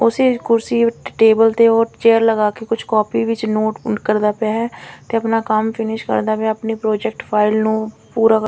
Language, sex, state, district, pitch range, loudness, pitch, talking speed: Punjabi, female, Punjab, Fazilka, 215-225 Hz, -17 LUFS, 225 Hz, 175 wpm